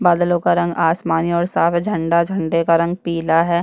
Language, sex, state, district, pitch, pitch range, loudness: Hindi, female, Chhattisgarh, Bastar, 170 Hz, 165-175 Hz, -17 LUFS